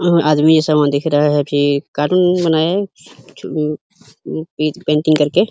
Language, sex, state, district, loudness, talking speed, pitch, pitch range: Hindi, male, Uttar Pradesh, Hamirpur, -15 LUFS, 140 wpm, 155 Hz, 150-170 Hz